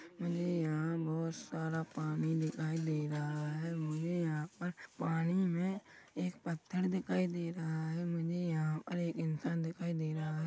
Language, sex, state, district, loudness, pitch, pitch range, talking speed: Hindi, male, Chhattisgarh, Rajnandgaon, -37 LUFS, 165 Hz, 155-175 Hz, 165 wpm